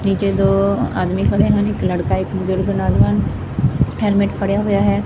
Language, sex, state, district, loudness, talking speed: Punjabi, female, Punjab, Fazilka, -17 LUFS, 130 wpm